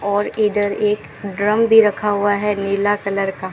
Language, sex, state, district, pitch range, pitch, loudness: Hindi, female, Rajasthan, Bikaner, 200-210 Hz, 205 Hz, -17 LUFS